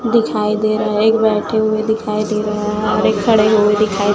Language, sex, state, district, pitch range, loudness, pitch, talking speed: Hindi, female, Chhattisgarh, Raipur, 210-220 Hz, -15 LUFS, 215 Hz, 230 wpm